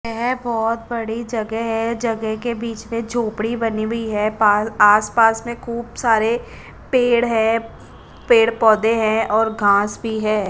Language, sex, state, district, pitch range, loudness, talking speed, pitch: Hindi, female, Chandigarh, Chandigarh, 220-235 Hz, -18 LUFS, 160 wpm, 225 Hz